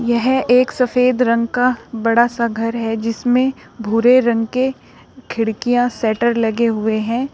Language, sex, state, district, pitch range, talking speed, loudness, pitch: Hindi, female, Uttar Pradesh, Shamli, 230-250 Hz, 145 wpm, -17 LUFS, 235 Hz